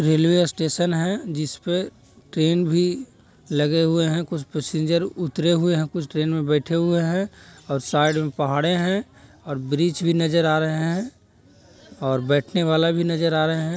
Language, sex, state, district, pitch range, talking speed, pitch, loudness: Hindi, male, Bihar, Jahanabad, 150-170 Hz, 175 wpm, 165 Hz, -22 LUFS